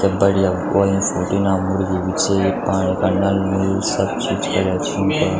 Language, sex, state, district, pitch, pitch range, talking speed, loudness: Garhwali, male, Uttarakhand, Tehri Garhwal, 95 Hz, 95-100 Hz, 135 wpm, -18 LUFS